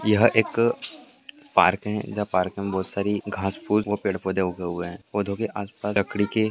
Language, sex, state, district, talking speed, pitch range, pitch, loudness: Maithili, male, Bihar, Purnia, 185 wpm, 95-105 Hz, 105 Hz, -25 LUFS